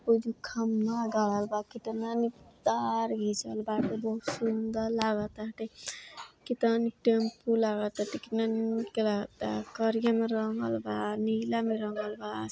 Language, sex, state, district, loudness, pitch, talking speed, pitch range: Hindi, female, Uttar Pradesh, Gorakhpur, -31 LUFS, 220 Hz, 130 wpm, 210-230 Hz